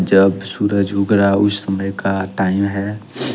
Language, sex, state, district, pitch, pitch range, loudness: Hindi, male, Jharkhand, Ranchi, 100 Hz, 95-100 Hz, -17 LUFS